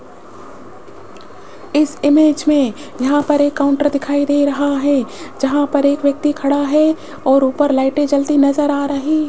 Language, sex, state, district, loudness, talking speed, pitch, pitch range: Hindi, female, Rajasthan, Jaipur, -15 LUFS, 160 wpm, 285 Hz, 280-295 Hz